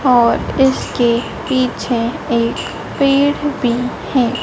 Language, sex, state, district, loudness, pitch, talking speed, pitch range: Hindi, female, Madhya Pradesh, Dhar, -16 LUFS, 250 Hz, 95 wpm, 235-275 Hz